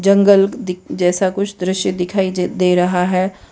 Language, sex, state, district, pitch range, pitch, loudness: Hindi, female, Gujarat, Valsad, 180-195 Hz, 185 Hz, -16 LUFS